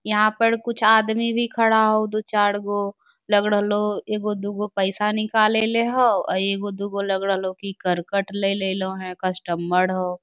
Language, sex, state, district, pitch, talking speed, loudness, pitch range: Magahi, female, Bihar, Lakhisarai, 205 Hz, 195 wpm, -21 LUFS, 195-220 Hz